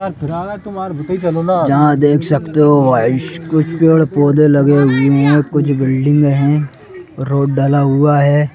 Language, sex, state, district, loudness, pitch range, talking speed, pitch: Hindi, male, Madhya Pradesh, Bhopal, -13 LUFS, 140-165 Hz, 125 wpm, 145 Hz